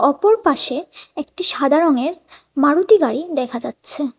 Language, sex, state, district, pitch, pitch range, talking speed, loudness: Bengali, female, Tripura, West Tripura, 305 Hz, 280-355 Hz, 130 wpm, -16 LUFS